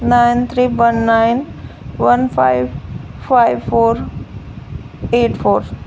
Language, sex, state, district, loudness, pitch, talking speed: Hindi, female, Uttar Pradesh, Shamli, -14 LUFS, 230 Hz, 110 wpm